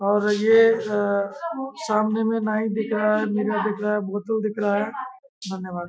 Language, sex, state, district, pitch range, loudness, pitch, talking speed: Hindi, male, Bihar, Kishanganj, 205-225 Hz, -23 LUFS, 215 Hz, 175 wpm